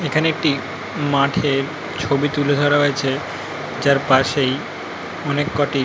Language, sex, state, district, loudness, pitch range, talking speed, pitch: Bengali, male, West Bengal, North 24 Parganas, -19 LUFS, 135-145 Hz, 115 wpm, 145 Hz